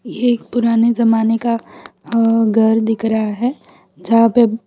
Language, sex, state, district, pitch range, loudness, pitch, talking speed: Hindi, female, Gujarat, Valsad, 225-235 Hz, -15 LUFS, 230 Hz, 165 wpm